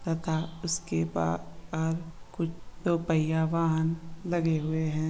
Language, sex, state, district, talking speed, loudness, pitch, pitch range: Marwari, female, Rajasthan, Nagaur, 140 wpm, -30 LUFS, 160 Hz, 155-165 Hz